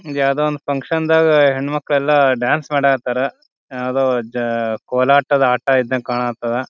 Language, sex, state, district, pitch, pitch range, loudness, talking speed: Kannada, male, Karnataka, Bijapur, 135 Hz, 125-145 Hz, -17 LUFS, 145 wpm